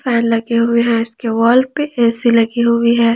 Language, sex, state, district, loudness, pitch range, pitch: Hindi, female, Jharkhand, Palamu, -14 LUFS, 230-235 Hz, 235 Hz